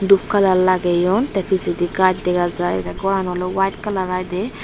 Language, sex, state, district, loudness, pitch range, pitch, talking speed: Chakma, female, Tripura, Unakoti, -19 LUFS, 180-195 Hz, 185 Hz, 180 wpm